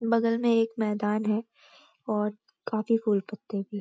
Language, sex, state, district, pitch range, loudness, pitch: Hindi, female, Uttarakhand, Uttarkashi, 210-230 Hz, -28 LUFS, 215 Hz